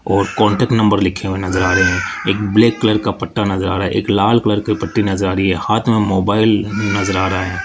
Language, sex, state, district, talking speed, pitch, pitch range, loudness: Hindi, male, Rajasthan, Jaipur, 265 wpm, 100 Hz, 95-105 Hz, -15 LUFS